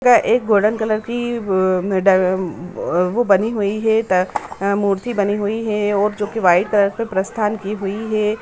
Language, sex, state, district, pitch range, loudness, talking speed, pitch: Bhojpuri, female, Bihar, Saran, 190-220 Hz, -18 LUFS, 205 wpm, 205 Hz